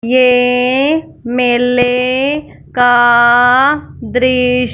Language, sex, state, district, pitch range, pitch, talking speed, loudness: Hindi, female, Punjab, Fazilka, 245-255 Hz, 250 Hz, 50 wpm, -11 LUFS